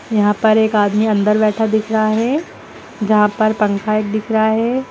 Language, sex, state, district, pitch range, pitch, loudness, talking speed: Hindi, female, Uttar Pradesh, Lucknow, 210-220 Hz, 215 Hz, -15 LUFS, 195 wpm